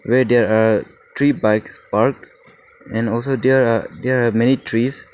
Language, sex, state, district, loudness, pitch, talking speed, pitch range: English, male, Arunachal Pradesh, Lower Dibang Valley, -17 LUFS, 120 Hz, 165 wpm, 115-130 Hz